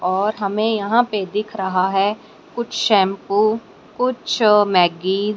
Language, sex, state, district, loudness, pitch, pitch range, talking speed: Hindi, male, Haryana, Charkhi Dadri, -18 LUFS, 205 Hz, 195-220 Hz, 135 wpm